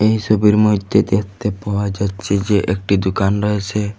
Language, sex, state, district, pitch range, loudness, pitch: Bengali, male, Assam, Hailakandi, 100-105 Hz, -17 LUFS, 100 Hz